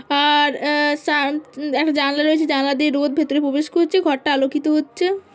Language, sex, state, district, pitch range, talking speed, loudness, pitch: Bengali, female, West Bengal, Purulia, 285-305 Hz, 180 wpm, -18 LUFS, 295 Hz